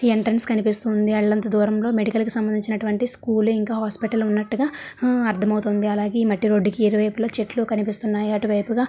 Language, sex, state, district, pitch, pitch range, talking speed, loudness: Telugu, male, Andhra Pradesh, Srikakulam, 215 Hz, 210-225 Hz, 160 wpm, -20 LUFS